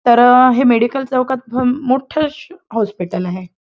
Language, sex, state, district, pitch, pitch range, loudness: Marathi, female, Maharashtra, Chandrapur, 255 Hz, 230-265 Hz, -15 LUFS